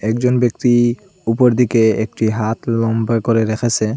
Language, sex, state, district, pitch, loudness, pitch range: Bengali, male, Assam, Hailakandi, 115 Hz, -16 LUFS, 110-120 Hz